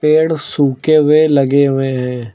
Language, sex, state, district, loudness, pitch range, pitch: Hindi, male, Uttar Pradesh, Lucknow, -13 LUFS, 135-155 Hz, 140 Hz